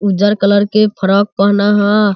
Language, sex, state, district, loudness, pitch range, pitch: Hindi, male, Bihar, Sitamarhi, -12 LUFS, 200-205 Hz, 205 Hz